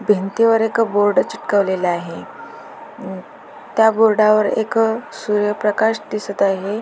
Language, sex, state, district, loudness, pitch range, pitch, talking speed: Marathi, female, Maharashtra, Pune, -17 LUFS, 200-225 Hz, 215 Hz, 115 wpm